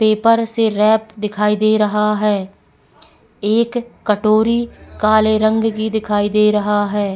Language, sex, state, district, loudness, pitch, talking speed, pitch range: Hindi, female, Goa, North and South Goa, -16 LUFS, 215 Hz, 135 wpm, 210-220 Hz